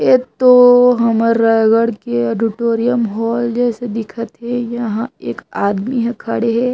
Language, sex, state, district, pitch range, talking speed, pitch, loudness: Chhattisgarhi, female, Chhattisgarh, Raigarh, 225-245 Hz, 135 wpm, 235 Hz, -15 LUFS